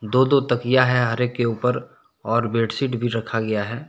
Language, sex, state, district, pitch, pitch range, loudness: Hindi, male, Jharkhand, Deoghar, 120 Hz, 115-125 Hz, -21 LUFS